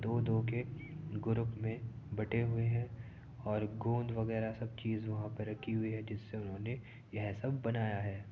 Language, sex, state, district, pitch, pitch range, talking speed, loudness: Hindi, male, Uttar Pradesh, Etah, 115 Hz, 110-120 Hz, 175 wpm, -38 LUFS